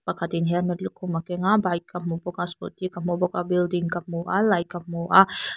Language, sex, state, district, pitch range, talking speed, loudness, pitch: Mizo, female, Mizoram, Aizawl, 170-185 Hz, 270 wpm, -24 LUFS, 175 Hz